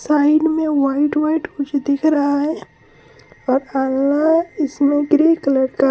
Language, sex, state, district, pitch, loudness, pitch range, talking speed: Hindi, female, Bihar, Supaul, 290 Hz, -17 LUFS, 275-310 Hz, 150 wpm